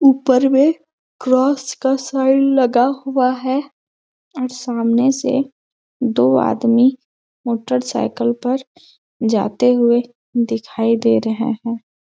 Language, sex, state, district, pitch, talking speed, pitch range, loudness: Hindi, female, Chhattisgarh, Balrampur, 255 Hz, 105 wpm, 235-270 Hz, -17 LUFS